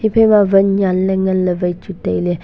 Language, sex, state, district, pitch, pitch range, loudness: Wancho, male, Arunachal Pradesh, Longding, 190 Hz, 180-195 Hz, -15 LUFS